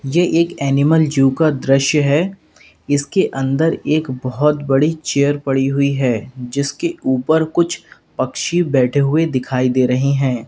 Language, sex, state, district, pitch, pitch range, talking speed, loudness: Hindi, male, Uttar Pradesh, Lalitpur, 140 Hz, 135-155 Hz, 150 wpm, -17 LUFS